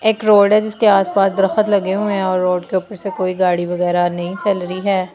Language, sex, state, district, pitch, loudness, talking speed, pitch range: Hindi, female, Delhi, New Delhi, 195 Hz, -16 LUFS, 245 wpm, 180-205 Hz